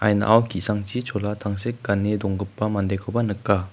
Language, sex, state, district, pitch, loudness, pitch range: Garo, male, Meghalaya, West Garo Hills, 105 Hz, -24 LUFS, 100-110 Hz